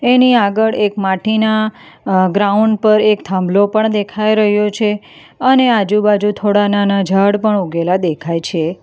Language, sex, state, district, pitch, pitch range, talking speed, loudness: Gujarati, female, Gujarat, Valsad, 210 Hz, 195-215 Hz, 150 wpm, -14 LUFS